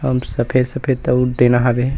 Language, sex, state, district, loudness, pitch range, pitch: Chhattisgarhi, male, Chhattisgarh, Rajnandgaon, -17 LUFS, 120-130 Hz, 125 Hz